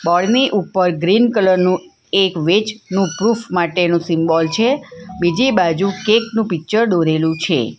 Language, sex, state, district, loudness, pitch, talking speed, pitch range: Gujarati, female, Gujarat, Valsad, -16 LUFS, 185 Hz, 155 wpm, 170-215 Hz